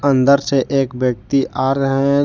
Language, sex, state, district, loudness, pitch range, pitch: Hindi, male, Jharkhand, Deoghar, -16 LUFS, 130-140 Hz, 135 Hz